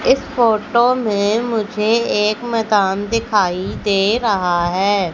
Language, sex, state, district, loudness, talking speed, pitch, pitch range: Hindi, female, Madhya Pradesh, Katni, -17 LUFS, 115 wpm, 210 Hz, 200-230 Hz